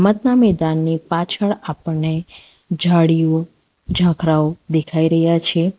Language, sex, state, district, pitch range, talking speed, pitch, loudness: Gujarati, female, Gujarat, Valsad, 160-180 Hz, 95 wpm, 165 Hz, -17 LUFS